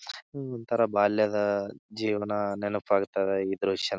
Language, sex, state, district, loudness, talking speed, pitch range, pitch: Kannada, male, Karnataka, Bijapur, -28 LUFS, 105 wpm, 100-110 Hz, 105 Hz